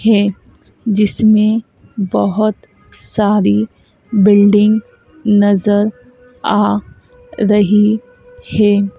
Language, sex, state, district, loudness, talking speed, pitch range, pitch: Hindi, female, Madhya Pradesh, Dhar, -14 LUFS, 60 wpm, 205-220 Hz, 210 Hz